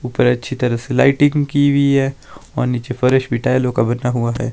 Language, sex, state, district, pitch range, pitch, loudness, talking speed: Hindi, male, Himachal Pradesh, Shimla, 125-135 Hz, 125 Hz, -16 LUFS, 225 wpm